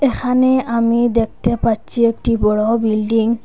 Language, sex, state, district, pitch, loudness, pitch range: Bengali, female, Assam, Hailakandi, 230 Hz, -16 LUFS, 225-240 Hz